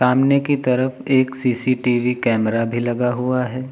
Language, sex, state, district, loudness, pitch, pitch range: Hindi, male, Uttar Pradesh, Lucknow, -19 LUFS, 125 Hz, 120-130 Hz